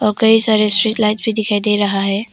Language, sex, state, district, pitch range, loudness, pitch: Hindi, female, Arunachal Pradesh, Papum Pare, 205-220 Hz, -14 LUFS, 210 Hz